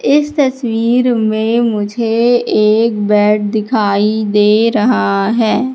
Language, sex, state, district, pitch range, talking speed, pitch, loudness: Hindi, female, Madhya Pradesh, Katni, 210-235 Hz, 105 wpm, 220 Hz, -13 LUFS